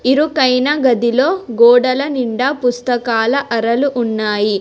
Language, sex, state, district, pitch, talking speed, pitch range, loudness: Telugu, female, Telangana, Hyderabad, 245 Hz, 90 wpm, 230-270 Hz, -14 LUFS